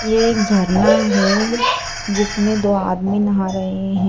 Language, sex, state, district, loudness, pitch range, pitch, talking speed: Hindi, female, Madhya Pradesh, Dhar, -17 LUFS, 190-220 Hz, 205 Hz, 145 wpm